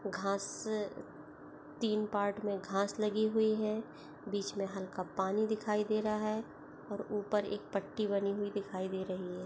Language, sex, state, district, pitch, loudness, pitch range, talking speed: Hindi, female, Chhattisgarh, Bastar, 205 Hz, -36 LUFS, 195-215 Hz, 165 wpm